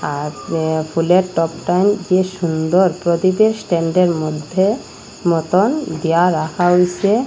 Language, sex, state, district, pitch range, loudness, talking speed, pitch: Bengali, female, Assam, Hailakandi, 165-185 Hz, -17 LUFS, 115 wpm, 175 Hz